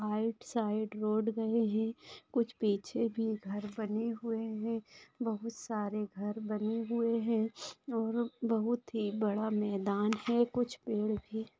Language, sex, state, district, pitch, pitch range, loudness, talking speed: Hindi, female, Maharashtra, Sindhudurg, 220 Hz, 215-230 Hz, -35 LUFS, 135 wpm